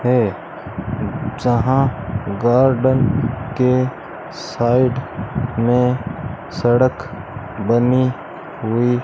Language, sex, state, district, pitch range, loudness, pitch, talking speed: Hindi, male, Rajasthan, Bikaner, 120-130 Hz, -18 LUFS, 125 Hz, 65 wpm